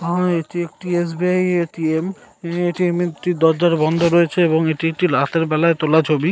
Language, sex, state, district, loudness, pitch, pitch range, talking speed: Bengali, male, West Bengal, North 24 Parganas, -18 LUFS, 170 Hz, 160-175 Hz, 150 wpm